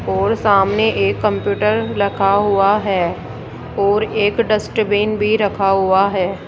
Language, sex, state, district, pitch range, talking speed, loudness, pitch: Hindi, female, Rajasthan, Jaipur, 195-210 Hz, 130 wpm, -16 LUFS, 200 Hz